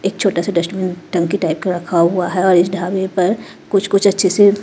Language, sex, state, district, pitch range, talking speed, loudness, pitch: Hindi, female, Haryana, Rohtak, 175-195 Hz, 220 wpm, -16 LUFS, 185 Hz